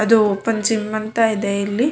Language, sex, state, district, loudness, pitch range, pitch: Kannada, female, Karnataka, Shimoga, -19 LUFS, 210-225 Hz, 215 Hz